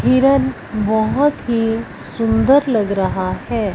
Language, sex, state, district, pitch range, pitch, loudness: Hindi, female, Punjab, Fazilka, 185-230 Hz, 220 Hz, -17 LUFS